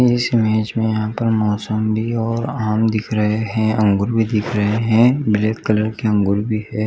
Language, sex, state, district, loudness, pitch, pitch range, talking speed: Hindi, male, Chhattisgarh, Bilaspur, -18 LUFS, 110 Hz, 105-115 Hz, 190 wpm